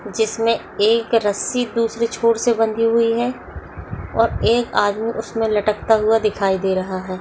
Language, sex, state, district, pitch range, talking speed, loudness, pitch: Hindi, female, Uttarakhand, Uttarkashi, 210-230 Hz, 160 wpm, -19 LUFS, 225 Hz